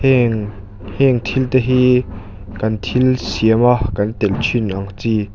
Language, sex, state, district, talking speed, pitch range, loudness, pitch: Mizo, male, Mizoram, Aizawl, 155 wpm, 100-125 Hz, -16 LUFS, 110 Hz